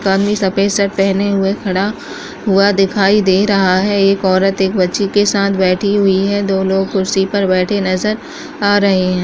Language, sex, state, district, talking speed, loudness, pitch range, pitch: Kumaoni, female, Uttarakhand, Uttarkashi, 190 wpm, -14 LUFS, 190-200 Hz, 195 Hz